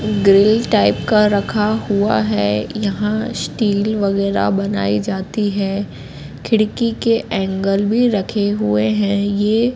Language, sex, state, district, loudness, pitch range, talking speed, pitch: Hindi, female, Madhya Pradesh, Katni, -17 LUFS, 145-215 Hz, 125 wpm, 200 Hz